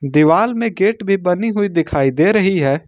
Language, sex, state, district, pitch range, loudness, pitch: Hindi, male, Jharkhand, Ranchi, 150-210 Hz, -15 LUFS, 185 Hz